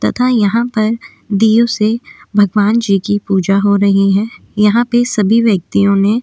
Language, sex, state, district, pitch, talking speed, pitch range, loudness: Hindi, female, Uttarakhand, Tehri Garhwal, 210 Hz, 175 wpm, 200-230 Hz, -13 LUFS